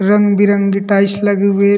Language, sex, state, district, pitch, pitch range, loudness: Chhattisgarhi, male, Chhattisgarh, Rajnandgaon, 200 Hz, 200-205 Hz, -13 LUFS